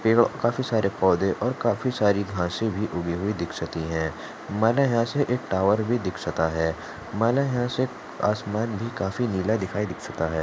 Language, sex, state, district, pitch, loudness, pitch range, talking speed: Hindi, male, Maharashtra, Aurangabad, 105 Hz, -25 LUFS, 90-120 Hz, 160 wpm